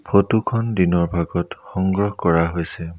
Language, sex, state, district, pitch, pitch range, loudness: Assamese, male, Assam, Sonitpur, 90 Hz, 85-100 Hz, -20 LUFS